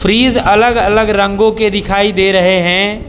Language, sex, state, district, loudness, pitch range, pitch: Hindi, male, Gujarat, Valsad, -10 LUFS, 195-220 Hz, 205 Hz